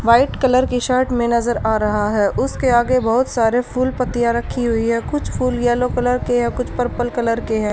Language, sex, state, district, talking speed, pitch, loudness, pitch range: Hindi, female, Haryana, Charkhi Dadri, 225 wpm, 240 Hz, -18 LUFS, 230-250 Hz